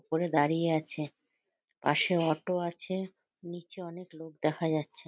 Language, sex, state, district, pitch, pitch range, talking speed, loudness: Bengali, female, West Bengal, North 24 Parganas, 165 Hz, 155-175 Hz, 130 wpm, -31 LUFS